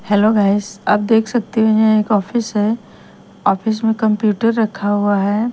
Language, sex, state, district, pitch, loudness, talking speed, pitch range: Hindi, female, Himachal Pradesh, Shimla, 215 Hz, -16 LUFS, 175 wpm, 205-225 Hz